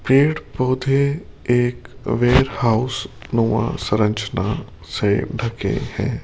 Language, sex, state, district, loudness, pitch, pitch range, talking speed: Hindi, male, Rajasthan, Jaipur, -20 LUFS, 120 Hz, 110-135 Hz, 95 wpm